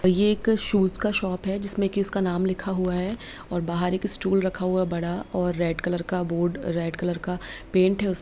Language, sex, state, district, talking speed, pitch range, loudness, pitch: Hindi, female, Bihar, Lakhisarai, 240 wpm, 175-195 Hz, -23 LUFS, 185 Hz